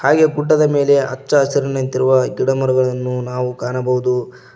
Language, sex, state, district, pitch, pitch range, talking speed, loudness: Kannada, male, Karnataka, Koppal, 130 Hz, 125-140 Hz, 90 wpm, -16 LUFS